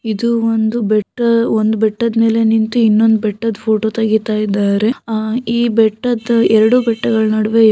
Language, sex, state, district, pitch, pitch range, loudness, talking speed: Kannada, female, Karnataka, Shimoga, 225 Hz, 220-230 Hz, -14 LUFS, 140 wpm